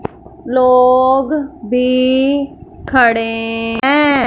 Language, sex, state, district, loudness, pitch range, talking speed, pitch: Hindi, female, Punjab, Fazilka, -13 LUFS, 240-275 Hz, 55 wpm, 255 Hz